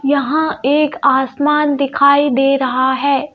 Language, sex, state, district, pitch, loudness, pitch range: Hindi, female, Madhya Pradesh, Bhopal, 280 Hz, -14 LUFS, 270-295 Hz